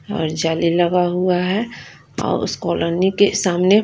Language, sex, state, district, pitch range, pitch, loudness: Hindi, female, Punjab, Fazilka, 170-200 Hz, 180 Hz, -18 LUFS